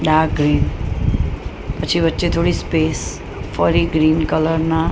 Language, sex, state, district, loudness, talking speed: Gujarati, female, Gujarat, Gandhinagar, -18 LUFS, 120 wpm